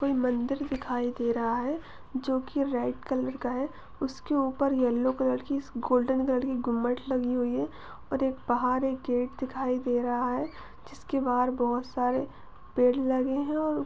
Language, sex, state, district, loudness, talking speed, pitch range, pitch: Hindi, female, Karnataka, Gulbarga, -29 LUFS, 180 wpm, 245-270 Hz, 255 Hz